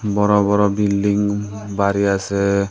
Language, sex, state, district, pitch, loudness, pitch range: Bengali, male, Tripura, Dhalai, 100 Hz, -18 LUFS, 100-105 Hz